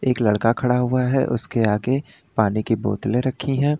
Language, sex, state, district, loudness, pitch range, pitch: Hindi, male, Uttar Pradesh, Lalitpur, -21 LUFS, 110-130 Hz, 120 Hz